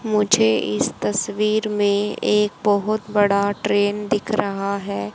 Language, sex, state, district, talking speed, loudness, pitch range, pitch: Hindi, female, Haryana, Jhajjar, 130 wpm, -20 LUFS, 200-210 Hz, 205 Hz